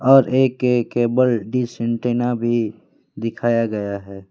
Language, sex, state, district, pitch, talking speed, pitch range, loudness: Hindi, male, West Bengal, Alipurduar, 120 Hz, 140 wpm, 115-125 Hz, -19 LUFS